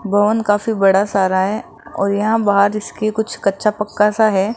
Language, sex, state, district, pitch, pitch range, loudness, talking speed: Hindi, female, Rajasthan, Jaipur, 210 Hz, 200-215 Hz, -16 LUFS, 185 wpm